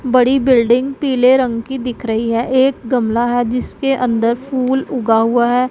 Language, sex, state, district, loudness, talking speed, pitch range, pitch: Hindi, female, Punjab, Pathankot, -15 LUFS, 180 wpm, 235-260 Hz, 250 Hz